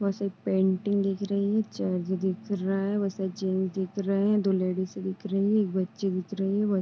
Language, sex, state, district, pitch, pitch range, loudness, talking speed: Hindi, female, Uttar Pradesh, Deoria, 195 Hz, 190-200 Hz, -28 LUFS, 235 wpm